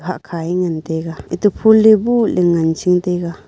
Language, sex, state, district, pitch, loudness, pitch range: Wancho, female, Arunachal Pradesh, Longding, 180 Hz, -15 LUFS, 165-205 Hz